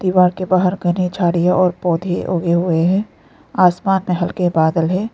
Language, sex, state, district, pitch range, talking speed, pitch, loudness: Hindi, female, Arunachal Pradesh, Lower Dibang Valley, 175-185 Hz, 185 wpm, 180 Hz, -17 LUFS